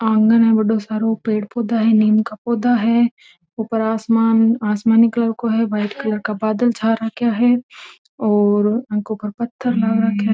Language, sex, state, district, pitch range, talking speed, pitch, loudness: Marwari, female, Rajasthan, Nagaur, 215-235 Hz, 175 wpm, 225 Hz, -17 LUFS